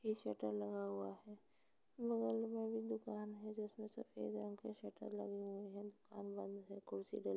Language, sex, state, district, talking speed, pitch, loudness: Hindi, female, Uttar Pradesh, Etah, 185 wpm, 200 Hz, -47 LUFS